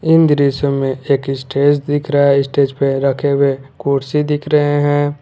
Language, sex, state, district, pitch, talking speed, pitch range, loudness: Hindi, male, Jharkhand, Garhwa, 140 Hz, 185 wpm, 140-145 Hz, -15 LUFS